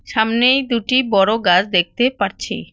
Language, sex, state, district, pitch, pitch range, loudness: Bengali, female, West Bengal, Cooch Behar, 225 Hz, 195-250 Hz, -16 LUFS